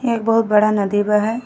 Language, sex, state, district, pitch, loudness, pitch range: Bhojpuri, female, Uttar Pradesh, Gorakhpur, 215 Hz, -16 LUFS, 210-225 Hz